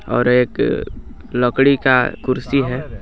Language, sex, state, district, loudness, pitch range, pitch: Hindi, male, Jharkhand, Garhwa, -17 LUFS, 125-130 Hz, 125 Hz